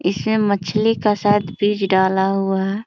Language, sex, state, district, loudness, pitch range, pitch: Hindi, female, Bihar, Jamui, -18 LUFS, 190-210 Hz, 200 Hz